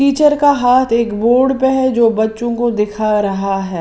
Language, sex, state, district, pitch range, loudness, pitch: Hindi, female, Maharashtra, Washim, 210-265 Hz, -14 LUFS, 235 Hz